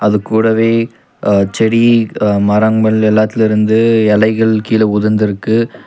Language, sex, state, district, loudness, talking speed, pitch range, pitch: Tamil, male, Tamil Nadu, Nilgiris, -12 LUFS, 100 wpm, 105-115 Hz, 110 Hz